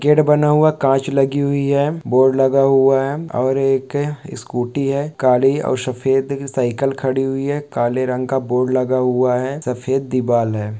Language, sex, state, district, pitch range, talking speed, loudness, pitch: Hindi, male, West Bengal, North 24 Parganas, 125-140 Hz, 185 wpm, -17 LUFS, 135 Hz